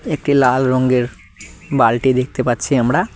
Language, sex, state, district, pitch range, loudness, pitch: Bengali, male, West Bengal, Cooch Behar, 120-130 Hz, -16 LUFS, 125 Hz